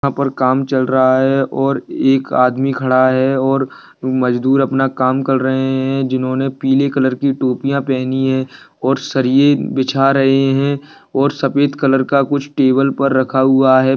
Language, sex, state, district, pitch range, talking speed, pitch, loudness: Hindi, male, Bihar, Kishanganj, 130-135 Hz, 170 wpm, 135 Hz, -15 LUFS